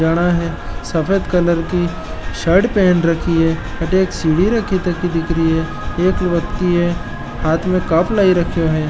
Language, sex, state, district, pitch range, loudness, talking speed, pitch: Marwari, male, Rajasthan, Nagaur, 165-180 Hz, -17 LUFS, 175 wpm, 175 Hz